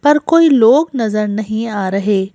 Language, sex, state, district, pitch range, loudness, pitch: Hindi, female, Madhya Pradesh, Bhopal, 210-290 Hz, -13 LUFS, 220 Hz